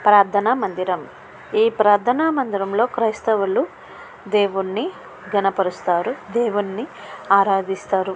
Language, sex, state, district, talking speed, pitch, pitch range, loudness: Telugu, female, Andhra Pradesh, Krishna, 80 wpm, 200 Hz, 195-220 Hz, -20 LUFS